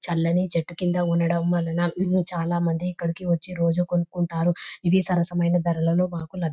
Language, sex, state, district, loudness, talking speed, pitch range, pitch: Telugu, female, Telangana, Nalgonda, -24 LUFS, 165 wpm, 170-180 Hz, 175 Hz